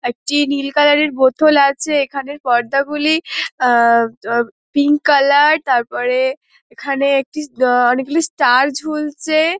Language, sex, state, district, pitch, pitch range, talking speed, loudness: Bengali, female, West Bengal, Dakshin Dinajpur, 280 Hz, 255-300 Hz, 130 wpm, -15 LUFS